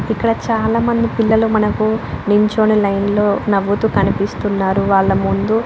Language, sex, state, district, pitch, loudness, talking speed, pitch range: Telugu, female, Andhra Pradesh, Anantapur, 210 Hz, -15 LUFS, 115 wpm, 200-225 Hz